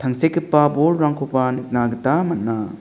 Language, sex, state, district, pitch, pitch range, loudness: Garo, male, Meghalaya, South Garo Hills, 135 Hz, 125-160 Hz, -19 LUFS